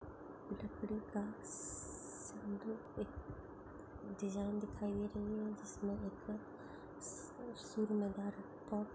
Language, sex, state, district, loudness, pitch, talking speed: Hindi, female, Maharashtra, Pune, -45 LUFS, 205 Hz, 80 wpm